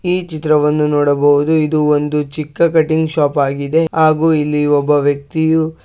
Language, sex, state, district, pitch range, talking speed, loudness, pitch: Kannada, male, Karnataka, Shimoga, 145-160 Hz, 255 wpm, -14 LUFS, 150 Hz